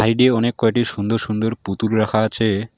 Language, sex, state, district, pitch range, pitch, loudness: Bengali, male, West Bengal, Alipurduar, 110-115 Hz, 110 Hz, -19 LUFS